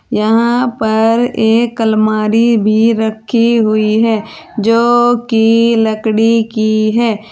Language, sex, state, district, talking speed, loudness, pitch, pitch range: Hindi, female, Uttar Pradesh, Saharanpur, 105 wpm, -12 LUFS, 225 Hz, 220-235 Hz